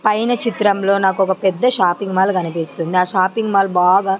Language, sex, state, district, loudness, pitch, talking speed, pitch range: Telugu, female, Andhra Pradesh, Sri Satya Sai, -16 LUFS, 190 Hz, 155 wpm, 185-205 Hz